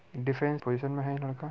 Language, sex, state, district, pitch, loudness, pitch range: Hindi, male, Bihar, Muzaffarpur, 140 Hz, -32 LUFS, 135-145 Hz